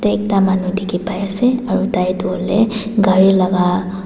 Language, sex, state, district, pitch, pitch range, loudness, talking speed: Nagamese, female, Nagaland, Dimapur, 195 Hz, 185-210 Hz, -16 LUFS, 165 wpm